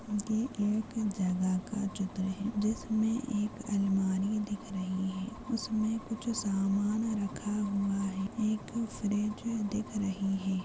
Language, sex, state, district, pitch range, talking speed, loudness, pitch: Hindi, female, Chhattisgarh, Rajnandgaon, 195-220 Hz, 130 wpm, -33 LUFS, 210 Hz